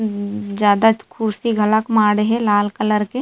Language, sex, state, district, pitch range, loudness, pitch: Chhattisgarhi, female, Chhattisgarh, Rajnandgaon, 205-225 Hz, -17 LUFS, 210 Hz